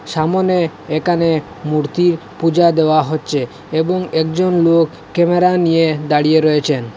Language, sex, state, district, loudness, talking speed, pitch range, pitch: Bengali, male, Assam, Hailakandi, -15 LUFS, 110 wpm, 155-170 Hz, 160 Hz